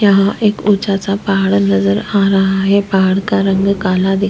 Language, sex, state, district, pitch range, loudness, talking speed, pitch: Hindi, female, Chhattisgarh, Korba, 195-200 Hz, -13 LUFS, 180 wpm, 195 Hz